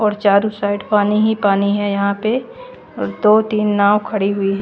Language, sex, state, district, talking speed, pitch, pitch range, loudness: Hindi, female, Haryana, Charkhi Dadri, 195 wpm, 205 Hz, 200-215 Hz, -16 LUFS